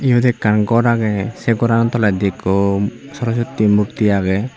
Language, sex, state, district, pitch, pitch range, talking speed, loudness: Chakma, male, Tripura, Unakoti, 110 Hz, 100-120 Hz, 145 wpm, -16 LUFS